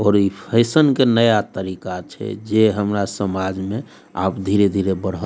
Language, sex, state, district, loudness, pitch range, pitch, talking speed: Maithili, male, Bihar, Darbhanga, -19 LUFS, 95-110 Hz, 100 Hz, 170 wpm